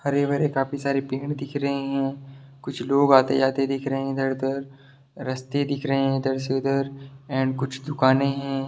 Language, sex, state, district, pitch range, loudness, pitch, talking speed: Hindi, male, Bihar, Sitamarhi, 135-140 Hz, -24 LUFS, 135 Hz, 165 wpm